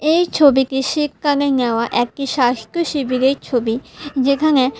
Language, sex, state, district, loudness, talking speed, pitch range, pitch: Bengali, female, Tripura, West Tripura, -17 LUFS, 110 wpm, 255-290 Hz, 270 Hz